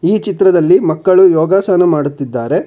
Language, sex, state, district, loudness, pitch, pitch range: Kannada, male, Karnataka, Bangalore, -11 LUFS, 180 Hz, 160-190 Hz